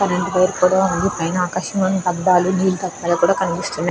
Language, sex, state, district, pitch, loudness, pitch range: Telugu, female, Andhra Pradesh, Krishna, 185 Hz, -18 LUFS, 175-190 Hz